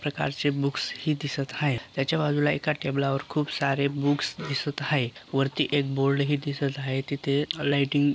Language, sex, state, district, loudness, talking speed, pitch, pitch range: Marathi, male, Maharashtra, Dhule, -27 LUFS, 170 wpm, 140 Hz, 140-145 Hz